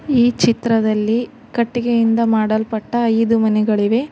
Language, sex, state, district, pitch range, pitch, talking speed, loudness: Kannada, female, Karnataka, Koppal, 220-240 Hz, 230 Hz, 85 wpm, -17 LUFS